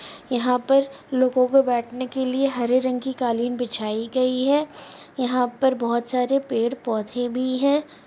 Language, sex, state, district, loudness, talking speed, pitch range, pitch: Hindi, female, Uttar Pradesh, Muzaffarnagar, -22 LUFS, 165 wpm, 245-270 Hz, 255 Hz